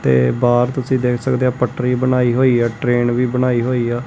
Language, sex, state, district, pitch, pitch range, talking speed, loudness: Punjabi, male, Punjab, Kapurthala, 125 Hz, 120-125 Hz, 220 wpm, -16 LUFS